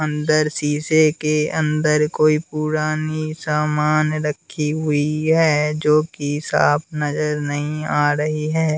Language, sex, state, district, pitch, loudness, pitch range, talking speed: Hindi, male, Bihar, West Champaran, 150 Hz, -19 LUFS, 150-155 Hz, 125 wpm